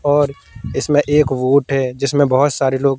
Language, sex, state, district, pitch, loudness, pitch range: Hindi, male, Madhya Pradesh, Katni, 140 Hz, -16 LUFS, 130-145 Hz